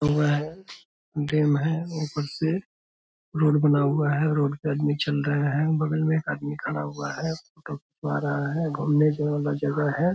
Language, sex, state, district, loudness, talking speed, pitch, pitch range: Hindi, male, Bihar, Purnia, -25 LUFS, 135 wpm, 150 Hz, 145-155 Hz